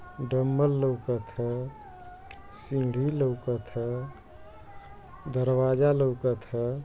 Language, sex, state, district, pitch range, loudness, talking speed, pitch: Bhojpuri, male, Uttar Pradesh, Ghazipur, 120-135 Hz, -28 LUFS, 80 wpm, 130 Hz